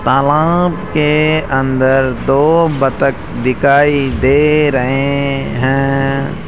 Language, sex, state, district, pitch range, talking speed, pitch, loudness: Hindi, male, Rajasthan, Jaipur, 135-150 Hz, 85 wpm, 140 Hz, -13 LUFS